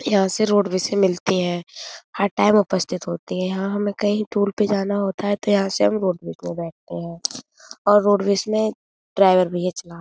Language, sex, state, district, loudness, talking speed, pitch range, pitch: Hindi, female, Uttar Pradesh, Budaun, -21 LUFS, 210 wpm, 180-205 Hz, 200 Hz